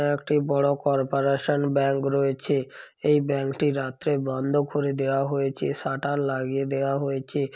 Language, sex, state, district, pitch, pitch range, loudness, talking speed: Bengali, male, West Bengal, Paschim Medinipur, 140 Hz, 135-145 Hz, -25 LUFS, 145 wpm